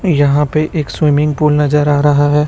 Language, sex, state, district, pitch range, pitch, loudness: Hindi, male, Chhattisgarh, Raipur, 145-150 Hz, 150 Hz, -13 LUFS